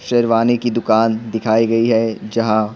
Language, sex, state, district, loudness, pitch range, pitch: Hindi, male, Bihar, Patna, -16 LUFS, 110-115 Hz, 115 Hz